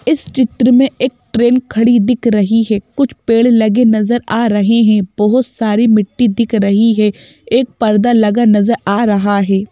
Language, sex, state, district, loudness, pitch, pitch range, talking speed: Hindi, female, Madhya Pradesh, Bhopal, -12 LUFS, 225 Hz, 210-235 Hz, 180 wpm